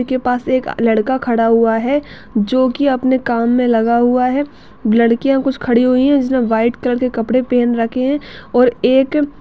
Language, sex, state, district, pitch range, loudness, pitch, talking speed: Hindi, female, Karnataka, Dakshina Kannada, 235-260 Hz, -15 LUFS, 250 Hz, 195 wpm